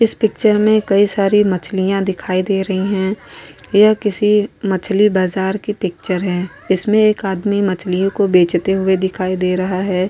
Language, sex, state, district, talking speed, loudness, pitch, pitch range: Hindi, female, Uttar Pradesh, Muzaffarnagar, 165 wpm, -16 LUFS, 195 Hz, 185-205 Hz